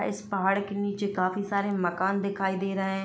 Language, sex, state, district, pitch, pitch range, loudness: Hindi, female, Uttar Pradesh, Jyotiba Phule Nagar, 195 Hz, 195-200 Hz, -28 LUFS